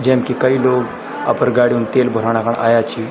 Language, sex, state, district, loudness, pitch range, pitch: Garhwali, male, Uttarakhand, Tehri Garhwal, -16 LUFS, 115-125 Hz, 120 Hz